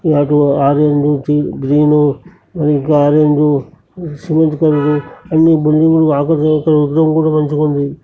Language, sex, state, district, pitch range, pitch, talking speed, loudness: Telugu, male, Andhra Pradesh, Srikakulam, 145-160 Hz, 150 Hz, 105 wpm, -12 LUFS